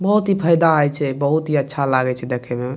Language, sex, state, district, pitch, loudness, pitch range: Maithili, male, Bihar, Madhepura, 145 Hz, -18 LUFS, 130-160 Hz